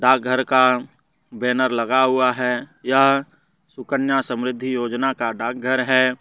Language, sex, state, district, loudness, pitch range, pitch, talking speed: Hindi, male, Jharkhand, Deoghar, -20 LUFS, 125-135 Hz, 130 Hz, 135 wpm